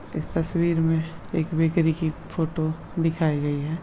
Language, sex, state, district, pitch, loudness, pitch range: Hindi, male, Bihar, Darbhanga, 160 Hz, -25 LUFS, 160-165 Hz